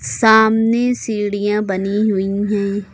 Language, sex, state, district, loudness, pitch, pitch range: Hindi, female, Uttar Pradesh, Lucknow, -16 LUFS, 205 Hz, 200-220 Hz